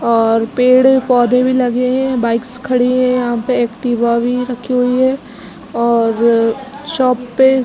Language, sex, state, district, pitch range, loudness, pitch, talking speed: Hindi, female, Chhattisgarh, Raigarh, 235-255 Hz, -14 LUFS, 250 Hz, 150 wpm